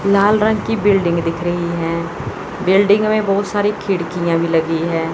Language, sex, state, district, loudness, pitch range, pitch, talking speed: Hindi, male, Chandigarh, Chandigarh, -17 LUFS, 170-205 Hz, 185 Hz, 175 wpm